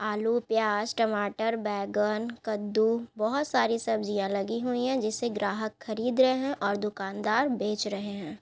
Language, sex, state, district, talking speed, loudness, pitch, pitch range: Hindi, female, Bihar, Gaya, 155 wpm, -29 LUFS, 220 Hz, 210-235 Hz